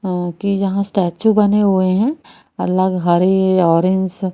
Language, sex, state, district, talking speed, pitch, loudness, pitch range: Hindi, female, Haryana, Rohtak, 150 wpm, 190 Hz, -16 LUFS, 185-200 Hz